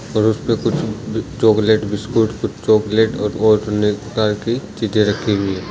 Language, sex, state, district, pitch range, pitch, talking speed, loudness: Hindi, male, Bihar, Lakhisarai, 105-110 Hz, 110 Hz, 170 wpm, -17 LUFS